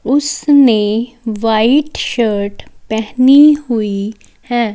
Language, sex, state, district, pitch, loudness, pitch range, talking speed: Hindi, female, Chandigarh, Chandigarh, 230 Hz, -13 LUFS, 215-270 Hz, 75 wpm